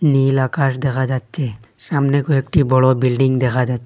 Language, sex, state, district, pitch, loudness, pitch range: Bengali, male, Assam, Hailakandi, 130 Hz, -17 LUFS, 125-140 Hz